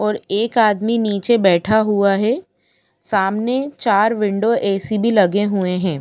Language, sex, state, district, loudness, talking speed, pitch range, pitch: Hindi, female, Madhya Pradesh, Bhopal, -17 LUFS, 150 wpm, 195-225 Hz, 210 Hz